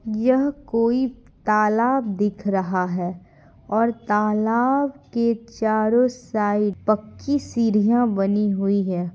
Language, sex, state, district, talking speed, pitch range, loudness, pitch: Hindi, female, Bihar, Madhepura, 105 wpm, 205-240 Hz, -21 LUFS, 215 Hz